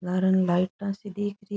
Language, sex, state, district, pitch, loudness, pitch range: Rajasthani, female, Rajasthan, Churu, 195 Hz, -26 LUFS, 185-205 Hz